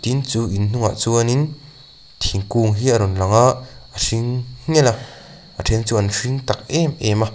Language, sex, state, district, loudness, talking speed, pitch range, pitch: Mizo, male, Mizoram, Aizawl, -19 LUFS, 190 wpm, 110-130 Hz, 115 Hz